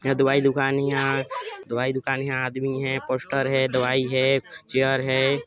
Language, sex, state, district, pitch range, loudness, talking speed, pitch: Hindi, male, Chhattisgarh, Sarguja, 130-135 Hz, -23 LUFS, 175 wpm, 135 Hz